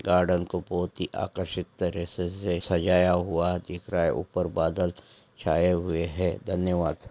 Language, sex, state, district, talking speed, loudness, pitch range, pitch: Hindi, male, Goa, North and South Goa, 150 wpm, -27 LUFS, 85-90 Hz, 90 Hz